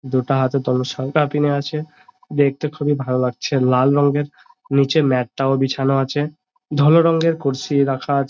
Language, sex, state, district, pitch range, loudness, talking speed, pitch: Bengali, male, West Bengal, Jhargram, 135-150 Hz, -18 LUFS, 150 wpm, 140 Hz